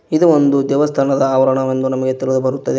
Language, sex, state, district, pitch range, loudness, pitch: Kannada, male, Karnataka, Koppal, 130-140 Hz, -15 LUFS, 135 Hz